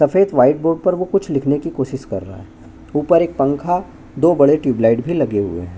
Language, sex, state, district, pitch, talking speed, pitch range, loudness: Hindi, male, Chhattisgarh, Bastar, 140 Hz, 240 wpm, 115-170 Hz, -17 LUFS